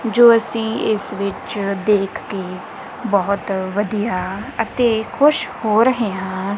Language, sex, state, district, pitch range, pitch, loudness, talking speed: Punjabi, female, Punjab, Kapurthala, 195-225 Hz, 210 Hz, -19 LUFS, 120 wpm